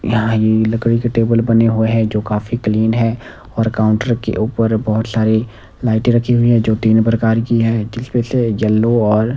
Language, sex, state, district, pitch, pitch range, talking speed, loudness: Hindi, male, Himachal Pradesh, Shimla, 115 Hz, 110-115 Hz, 200 wpm, -15 LUFS